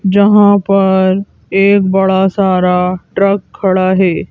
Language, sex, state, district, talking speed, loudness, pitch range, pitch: Hindi, female, Madhya Pradesh, Bhopal, 110 wpm, -11 LUFS, 185-200 Hz, 195 Hz